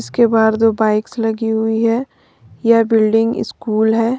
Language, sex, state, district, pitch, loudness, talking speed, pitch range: Hindi, female, Jharkhand, Deoghar, 225 Hz, -15 LUFS, 155 wpm, 220-230 Hz